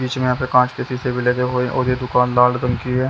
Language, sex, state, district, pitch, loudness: Hindi, male, Haryana, Jhajjar, 125 Hz, -18 LUFS